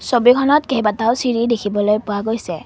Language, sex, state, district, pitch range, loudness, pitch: Assamese, female, Assam, Kamrup Metropolitan, 210-245 Hz, -17 LUFS, 230 Hz